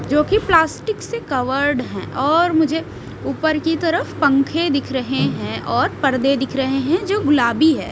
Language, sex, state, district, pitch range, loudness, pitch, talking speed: Hindi, female, Bihar, Kaimur, 270-330 Hz, -18 LUFS, 300 Hz, 175 wpm